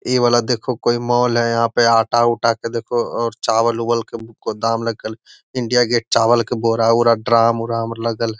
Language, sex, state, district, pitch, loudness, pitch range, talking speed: Magahi, male, Bihar, Gaya, 115 Hz, -17 LUFS, 115-120 Hz, 200 wpm